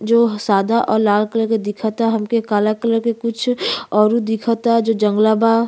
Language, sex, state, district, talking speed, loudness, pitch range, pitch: Bhojpuri, female, Uttar Pradesh, Gorakhpur, 180 wpm, -17 LUFS, 215-230 Hz, 225 Hz